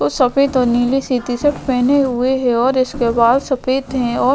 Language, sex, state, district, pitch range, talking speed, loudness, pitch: Hindi, female, Goa, North and South Goa, 245-265 Hz, 220 wpm, -16 LUFS, 255 Hz